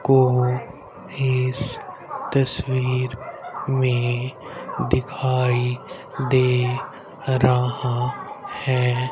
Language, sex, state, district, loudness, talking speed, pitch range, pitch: Hindi, male, Haryana, Rohtak, -22 LUFS, 55 wpm, 125-130 Hz, 130 Hz